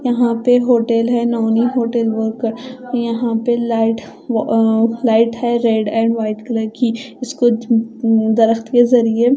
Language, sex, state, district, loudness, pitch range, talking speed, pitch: Hindi, female, Punjab, Fazilka, -16 LUFS, 225-240 Hz, 145 wpm, 230 Hz